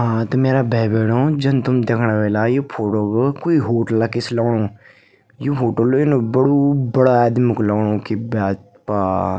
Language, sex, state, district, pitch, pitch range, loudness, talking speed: Garhwali, female, Uttarakhand, Tehri Garhwal, 115 Hz, 110-130 Hz, -18 LUFS, 175 wpm